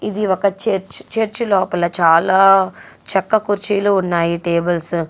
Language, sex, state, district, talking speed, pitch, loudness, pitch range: Telugu, female, Andhra Pradesh, Guntur, 130 wpm, 190 Hz, -16 LUFS, 175-205 Hz